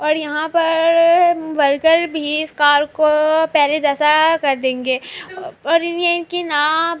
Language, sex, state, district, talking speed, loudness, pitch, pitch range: Urdu, female, Andhra Pradesh, Anantapur, 135 wpm, -16 LUFS, 315 Hz, 295-335 Hz